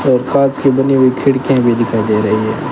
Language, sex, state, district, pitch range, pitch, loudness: Hindi, male, Rajasthan, Bikaner, 115-135 Hz, 130 Hz, -13 LUFS